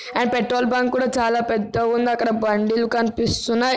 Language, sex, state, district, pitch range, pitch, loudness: Telugu, female, Telangana, Karimnagar, 230-245 Hz, 235 Hz, -20 LUFS